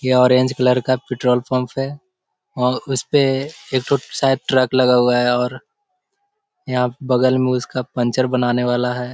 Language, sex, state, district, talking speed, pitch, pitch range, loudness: Hindi, male, Bihar, Jahanabad, 155 wpm, 130 Hz, 125-135 Hz, -18 LUFS